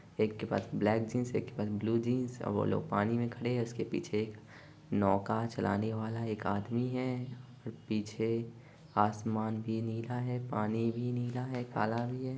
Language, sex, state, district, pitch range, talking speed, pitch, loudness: Hindi, male, Bihar, Sitamarhi, 110-125 Hz, 195 wpm, 115 Hz, -34 LUFS